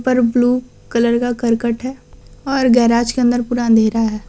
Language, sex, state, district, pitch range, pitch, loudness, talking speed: Hindi, female, Jharkhand, Deoghar, 235-245 Hz, 240 Hz, -16 LUFS, 180 wpm